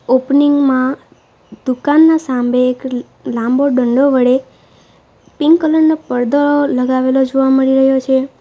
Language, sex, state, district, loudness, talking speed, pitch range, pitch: Gujarati, female, Gujarat, Valsad, -13 LUFS, 105 wpm, 255-285 Hz, 265 Hz